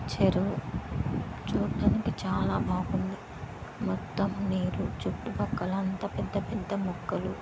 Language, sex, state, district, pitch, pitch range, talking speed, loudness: Telugu, female, Andhra Pradesh, Srikakulam, 190 Hz, 185-200 Hz, 95 wpm, -31 LUFS